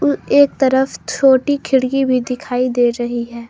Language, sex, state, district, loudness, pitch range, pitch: Hindi, female, Jharkhand, Garhwa, -15 LUFS, 245-270 Hz, 260 Hz